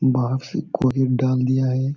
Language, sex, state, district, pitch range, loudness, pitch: Hindi, male, Bihar, Supaul, 130-135 Hz, -21 LUFS, 130 Hz